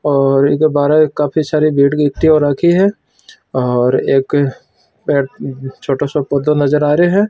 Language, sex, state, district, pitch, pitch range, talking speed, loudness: Marwari, male, Rajasthan, Churu, 145 Hz, 140-155 Hz, 165 wpm, -14 LUFS